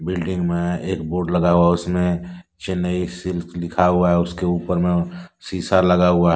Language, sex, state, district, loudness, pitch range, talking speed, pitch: Hindi, male, Jharkhand, Deoghar, -20 LUFS, 85-90 Hz, 190 wpm, 90 Hz